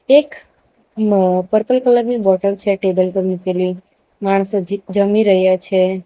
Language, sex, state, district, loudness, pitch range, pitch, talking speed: Gujarati, female, Gujarat, Valsad, -16 LUFS, 185-215 Hz, 195 Hz, 150 wpm